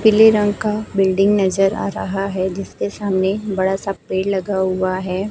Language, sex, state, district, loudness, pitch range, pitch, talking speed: Hindi, female, Chhattisgarh, Raipur, -18 LUFS, 190-205 Hz, 195 Hz, 180 wpm